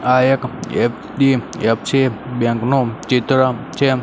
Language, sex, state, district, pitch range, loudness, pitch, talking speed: Gujarati, male, Gujarat, Gandhinagar, 120-135 Hz, -17 LUFS, 130 Hz, 105 wpm